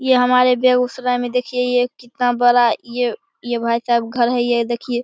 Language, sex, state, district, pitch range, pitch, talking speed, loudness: Hindi, male, Bihar, Begusarai, 240-250 Hz, 245 Hz, 190 wpm, -17 LUFS